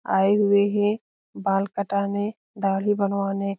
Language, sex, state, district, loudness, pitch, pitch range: Hindi, female, Bihar, Lakhisarai, -23 LUFS, 200 Hz, 195-205 Hz